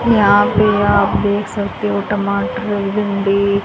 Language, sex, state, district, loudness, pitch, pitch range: Hindi, female, Haryana, Charkhi Dadri, -15 LUFS, 200 Hz, 200-205 Hz